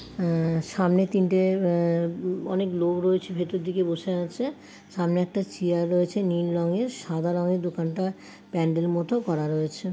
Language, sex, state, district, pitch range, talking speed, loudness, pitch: Bengali, female, West Bengal, Paschim Medinipur, 170-185 Hz, 135 wpm, -26 LUFS, 180 Hz